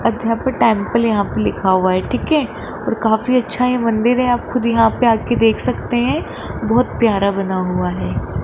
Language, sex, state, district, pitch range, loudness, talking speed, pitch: Hindi, female, Rajasthan, Jaipur, 200-245 Hz, -17 LUFS, 205 wpm, 230 Hz